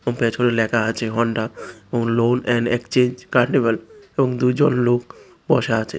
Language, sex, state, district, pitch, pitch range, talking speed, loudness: Bengali, male, Tripura, West Tripura, 120 Hz, 115-125 Hz, 140 wpm, -20 LUFS